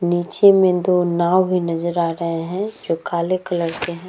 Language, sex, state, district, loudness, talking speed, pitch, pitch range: Hindi, female, Bihar, Vaishali, -18 LUFS, 205 wpm, 175 Hz, 170-185 Hz